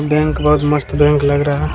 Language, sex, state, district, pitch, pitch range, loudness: Hindi, male, Bihar, Jamui, 150 Hz, 145-150 Hz, -14 LUFS